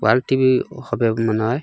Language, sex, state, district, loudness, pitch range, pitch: Bengali, male, Assam, Hailakandi, -19 LUFS, 115-130 Hz, 120 Hz